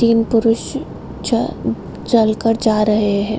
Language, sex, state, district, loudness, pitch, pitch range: Hindi, female, Bihar, Saran, -17 LUFS, 225 Hz, 215-225 Hz